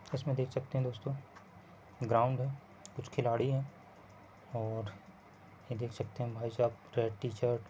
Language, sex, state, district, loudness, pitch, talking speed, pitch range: Hindi, male, Rajasthan, Churu, -36 LUFS, 120 Hz, 140 wpm, 105-130 Hz